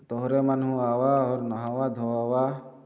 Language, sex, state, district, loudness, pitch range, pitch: Chhattisgarhi, male, Chhattisgarh, Jashpur, -26 LUFS, 120-130 Hz, 130 Hz